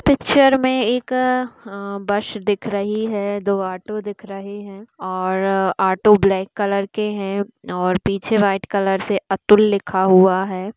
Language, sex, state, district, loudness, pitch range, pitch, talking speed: Hindi, female, Bihar, Gaya, -18 LUFS, 195-215 Hz, 200 Hz, 155 wpm